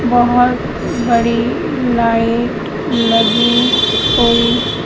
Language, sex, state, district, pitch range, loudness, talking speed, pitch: Hindi, female, Madhya Pradesh, Katni, 230-245 Hz, -13 LUFS, 60 wpm, 235 Hz